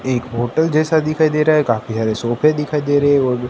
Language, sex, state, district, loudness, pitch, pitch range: Hindi, male, Gujarat, Gandhinagar, -16 LUFS, 145 Hz, 120-155 Hz